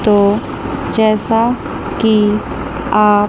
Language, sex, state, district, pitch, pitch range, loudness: Hindi, female, Chandigarh, Chandigarh, 215 Hz, 210-225 Hz, -15 LUFS